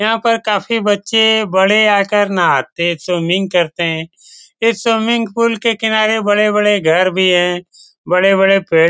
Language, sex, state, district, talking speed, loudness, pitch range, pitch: Hindi, male, Bihar, Saran, 170 wpm, -13 LUFS, 180-220 Hz, 205 Hz